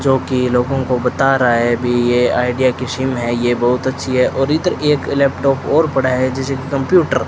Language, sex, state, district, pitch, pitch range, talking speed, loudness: Hindi, male, Rajasthan, Bikaner, 130 Hz, 125-135 Hz, 225 wpm, -16 LUFS